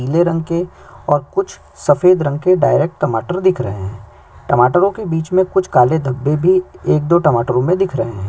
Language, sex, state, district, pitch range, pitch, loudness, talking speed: Hindi, male, Chhattisgarh, Sukma, 125-180 Hz, 155 Hz, -15 LUFS, 205 wpm